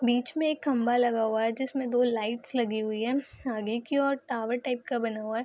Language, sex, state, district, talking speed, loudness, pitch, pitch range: Hindi, female, Bihar, Madhepura, 240 wpm, -29 LUFS, 245 Hz, 225-265 Hz